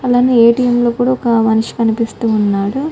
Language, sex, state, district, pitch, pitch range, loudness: Telugu, female, Telangana, Karimnagar, 235 Hz, 225-245 Hz, -13 LUFS